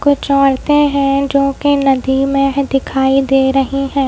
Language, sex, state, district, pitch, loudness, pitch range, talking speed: Hindi, female, Madhya Pradesh, Bhopal, 275 Hz, -13 LUFS, 270-280 Hz, 175 wpm